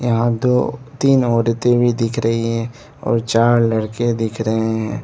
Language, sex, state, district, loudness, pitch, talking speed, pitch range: Hindi, male, Arunachal Pradesh, Lower Dibang Valley, -17 LUFS, 115 Hz, 165 wpm, 115-120 Hz